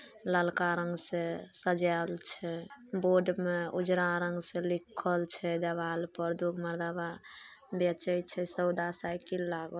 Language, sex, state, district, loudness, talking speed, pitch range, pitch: Maithili, female, Bihar, Samastipur, -33 LUFS, 140 wpm, 170-180 Hz, 175 Hz